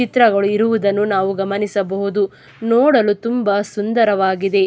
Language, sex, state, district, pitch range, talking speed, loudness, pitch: Kannada, female, Karnataka, Chamarajanagar, 195-225 Hz, 90 wpm, -17 LUFS, 205 Hz